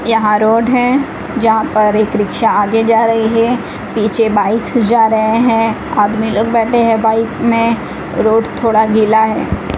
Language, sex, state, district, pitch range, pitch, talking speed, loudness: Hindi, female, Odisha, Malkangiri, 215-230 Hz, 225 Hz, 160 wpm, -13 LUFS